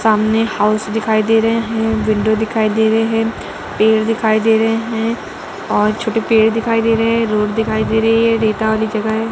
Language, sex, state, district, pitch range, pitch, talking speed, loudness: Hindi, female, Uttar Pradesh, Budaun, 220-225 Hz, 220 Hz, 180 wpm, -15 LUFS